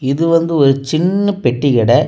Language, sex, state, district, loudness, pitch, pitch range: Tamil, male, Tamil Nadu, Kanyakumari, -14 LUFS, 145 Hz, 135-165 Hz